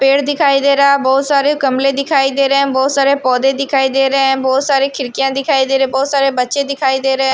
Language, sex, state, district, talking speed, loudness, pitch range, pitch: Hindi, female, Bihar, Patna, 270 wpm, -13 LUFS, 265-275 Hz, 275 Hz